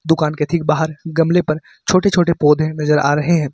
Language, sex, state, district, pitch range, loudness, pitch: Hindi, male, Uttar Pradesh, Lucknow, 150-170 Hz, -16 LUFS, 155 Hz